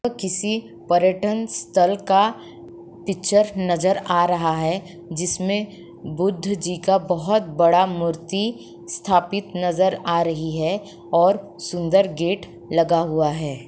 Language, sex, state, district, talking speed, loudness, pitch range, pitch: Hindi, female, Uttar Pradesh, Budaun, 120 wpm, -21 LUFS, 170-195 Hz, 180 Hz